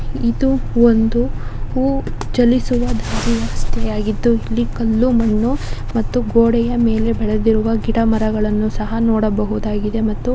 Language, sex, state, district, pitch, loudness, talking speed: Kannada, female, Karnataka, Dakshina Kannada, 215 Hz, -17 LUFS, 85 wpm